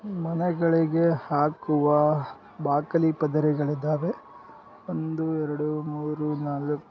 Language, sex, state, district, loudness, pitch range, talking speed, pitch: Kannada, male, Karnataka, Gulbarga, -26 LUFS, 150-165 Hz, 85 wpm, 150 Hz